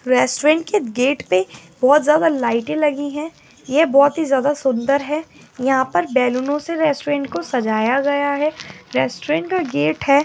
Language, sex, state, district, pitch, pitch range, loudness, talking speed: Angika, female, Bihar, Madhepura, 285 Hz, 255-300 Hz, -18 LUFS, 160 wpm